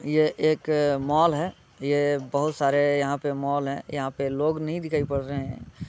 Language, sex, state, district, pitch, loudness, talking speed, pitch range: Hindi, male, Bihar, Muzaffarpur, 145 Hz, -25 LUFS, 195 wpm, 140-155 Hz